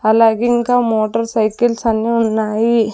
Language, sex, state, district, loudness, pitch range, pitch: Telugu, female, Andhra Pradesh, Sri Satya Sai, -15 LUFS, 220-235 Hz, 230 Hz